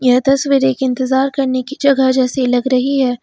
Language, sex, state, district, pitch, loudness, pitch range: Hindi, female, Uttar Pradesh, Lucknow, 260 Hz, -15 LUFS, 255-275 Hz